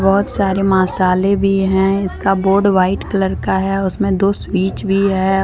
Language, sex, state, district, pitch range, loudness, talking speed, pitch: Hindi, female, Jharkhand, Deoghar, 190-195 Hz, -15 LUFS, 175 wpm, 195 Hz